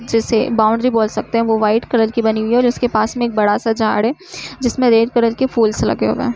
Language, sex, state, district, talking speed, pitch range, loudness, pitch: Hindi, female, Uttar Pradesh, Budaun, 275 wpm, 220-245 Hz, -16 LUFS, 230 Hz